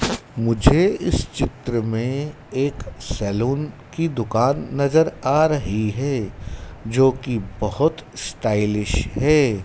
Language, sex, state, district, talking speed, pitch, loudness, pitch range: Hindi, male, Madhya Pradesh, Dhar, 100 wpm, 120 Hz, -21 LUFS, 105-140 Hz